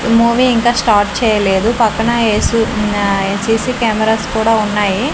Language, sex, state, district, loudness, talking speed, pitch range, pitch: Telugu, female, Andhra Pradesh, Manyam, -13 LUFS, 130 wpm, 210-235 Hz, 220 Hz